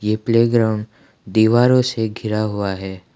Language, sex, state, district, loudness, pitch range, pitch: Hindi, male, Assam, Kamrup Metropolitan, -18 LUFS, 105-115 Hz, 110 Hz